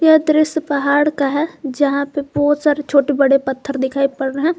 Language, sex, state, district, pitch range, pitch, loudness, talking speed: Hindi, female, Jharkhand, Garhwa, 275-300 Hz, 285 Hz, -17 LUFS, 210 wpm